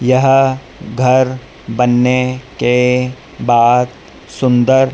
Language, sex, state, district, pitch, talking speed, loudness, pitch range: Hindi, male, Madhya Pradesh, Dhar, 125 Hz, 75 wpm, -13 LUFS, 125-130 Hz